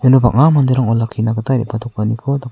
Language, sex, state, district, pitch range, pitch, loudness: Garo, male, Meghalaya, South Garo Hills, 115-130 Hz, 120 Hz, -15 LUFS